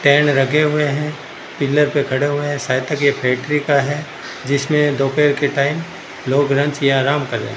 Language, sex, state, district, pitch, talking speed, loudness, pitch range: Hindi, male, Rajasthan, Bikaner, 145 Hz, 205 wpm, -17 LUFS, 135-150 Hz